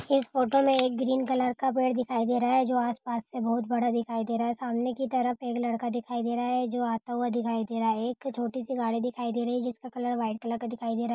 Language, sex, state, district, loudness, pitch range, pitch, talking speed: Hindi, female, Uttar Pradesh, Hamirpur, -29 LUFS, 235-250 Hz, 240 Hz, 295 wpm